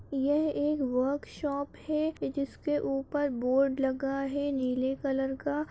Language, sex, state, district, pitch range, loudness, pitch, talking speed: Kumaoni, female, Uttarakhand, Uttarkashi, 270-290 Hz, -30 LUFS, 280 Hz, 125 wpm